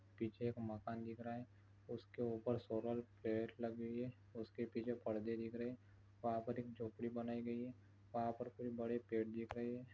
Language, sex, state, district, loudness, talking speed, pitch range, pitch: Hindi, male, Maharashtra, Aurangabad, -46 LUFS, 205 wpm, 110-120 Hz, 115 Hz